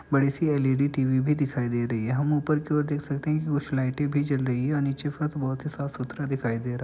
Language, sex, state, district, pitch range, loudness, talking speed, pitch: Hindi, male, Uttar Pradesh, Ghazipur, 130-145 Hz, -27 LUFS, 290 wpm, 140 Hz